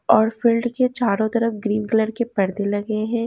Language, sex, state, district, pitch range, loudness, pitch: Hindi, female, Haryana, Jhajjar, 210-235 Hz, -21 LUFS, 220 Hz